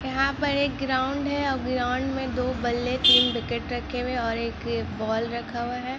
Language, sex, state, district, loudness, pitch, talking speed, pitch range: Hindi, female, Jharkhand, Jamtara, -25 LUFS, 255 Hz, 170 wpm, 240-270 Hz